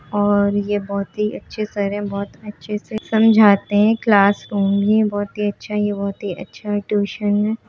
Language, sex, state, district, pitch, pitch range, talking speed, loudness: Hindi, female, Bihar, Muzaffarpur, 205 Hz, 200-210 Hz, 180 wpm, -19 LUFS